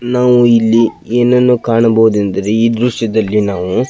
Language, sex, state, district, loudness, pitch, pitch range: Kannada, male, Karnataka, Belgaum, -12 LUFS, 115 Hz, 110-120 Hz